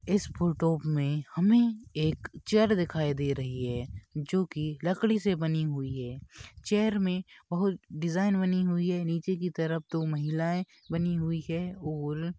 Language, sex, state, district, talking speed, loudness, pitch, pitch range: Hindi, male, Jharkhand, Sahebganj, 160 wpm, -30 LUFS, 165 Hz, 155-185 Hz